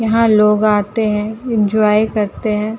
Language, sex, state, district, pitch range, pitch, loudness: Hindi, female, Uttar Pradesh, Jalaun, 210-220 Hz, 215 Hz, -15 LUFS